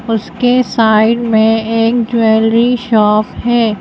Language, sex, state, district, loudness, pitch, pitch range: Hindi, female, Madhya Pradesh, Bhopal, -12 LUFS, 225 Hz, 220-235 Hz